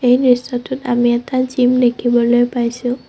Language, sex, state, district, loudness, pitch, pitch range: Assamese, female, Assam, Sonitpur, -16 LUFS, 245 Hz, 240-250 Hz